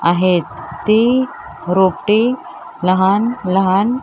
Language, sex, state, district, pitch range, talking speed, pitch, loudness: Marathi, female, Maharashtra, Mumbai Suburban, 185-235 Hz, 90 wpm, 195 Hz, -15 LUFS